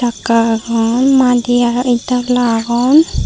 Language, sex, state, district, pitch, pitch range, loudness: Chakma, female, Tripura, Dhalai, 245 Hz, 230-250 Hz, -13 LUFS